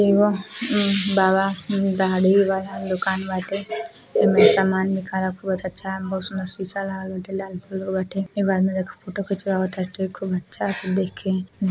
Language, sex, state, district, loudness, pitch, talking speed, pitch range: Bhojpuri, female, Uttar Pradesh, Deoria, -22 LUFS, 190 Hz, 120 wpm, 190-195 Hz